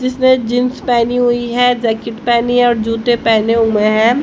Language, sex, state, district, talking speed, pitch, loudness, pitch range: Hindi, female, Haryana, Rohtak, 170 wpm, 240 Hz, -13 LUFS, 230-245 Hz